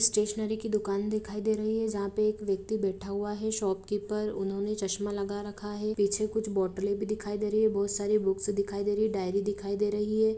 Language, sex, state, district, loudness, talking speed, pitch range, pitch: Hindi, female, Jharkhand, Jamtara, -30 LUFS, 230 wpm, 200-215 Hz, 205 Hz